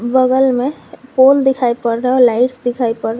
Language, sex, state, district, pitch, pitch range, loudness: Hindi, female, Jharkhand, Garhwa, 250 Hz, 240-260 Hz, -14 LUFS